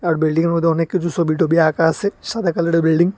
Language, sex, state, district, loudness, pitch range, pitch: Bengali, male, Tripura, West Tripura, -17 LUFS, 165-170 Hz, 165 Hz